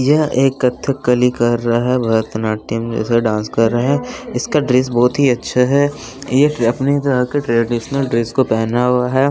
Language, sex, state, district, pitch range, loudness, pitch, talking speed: Hindi, male, Bihar, West Champaran, 115-135 Hz, -16 LUFS, 125 Hz, 180 wpm